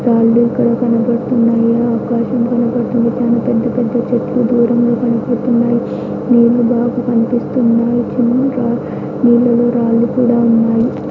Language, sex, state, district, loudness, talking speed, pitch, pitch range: Telugu, female, Andhra Pradesh, Anantapur, -13 LUFS, 105 wpm, 240 Hz, 235-245 Hz